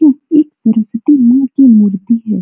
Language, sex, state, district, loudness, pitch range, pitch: Hindi, female, Bihar, Supaul, -10 LUFS, 220-290 Hz, 245 Hz